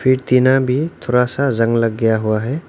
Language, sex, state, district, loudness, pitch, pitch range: Hindi, male, Arunachal Pradesh, Lower Dibang Valley, -16 LUFS, 125 Hz, 115-135 Hz